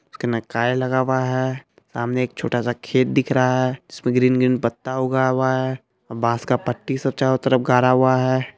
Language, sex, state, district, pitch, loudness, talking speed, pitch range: Hindi, male, Bihar, Araria, 130 Hz, -20 LUFS, 195 wpm, 125-130 Hz